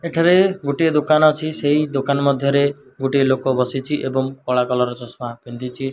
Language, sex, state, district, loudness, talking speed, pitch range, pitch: Odia, male, Odisha, Malkangiri, -18 LUFS, 150 wpm, 130-150 Hz, 140 Hz